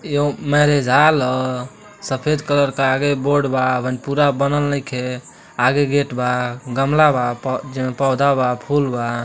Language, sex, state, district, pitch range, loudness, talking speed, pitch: Bhojpuri, male, Uttar Pradesh, Deoria, 125-145 Hz, -18 LUFS, 140 wpm, 135 Hz